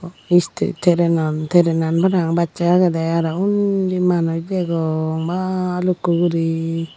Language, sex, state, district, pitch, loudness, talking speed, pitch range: Chakma, female, Tripura, Dhalai, 170 Hz, -18 LUFS, 110 wpm, 165-180 Hz